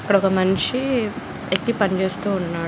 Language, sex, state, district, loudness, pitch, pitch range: Telugu, female, Andhra Pradesh, Guntur, -21 LUFS, 195 Hz, 185-215 Hz